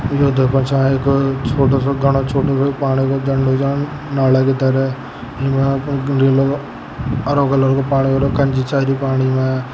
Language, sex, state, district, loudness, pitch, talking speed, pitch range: Hindi, male, Rajasthan, Nagaur, -16 LUFS, 135 Hz, 165 wpm, 135-140 Hz